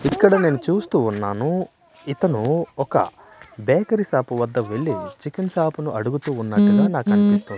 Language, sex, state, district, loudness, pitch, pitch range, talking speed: Telugu, male, Andhra Pradesh, Manyam, -20 LUFS, 155 Hz, 130-190 Hz, 120 wpm